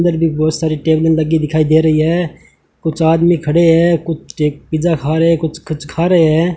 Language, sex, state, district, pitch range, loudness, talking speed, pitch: Hindi, male, Rajasthan, Bikaner, 155-165 Hz, -14 LUFS, 210 wpm, 160 Hz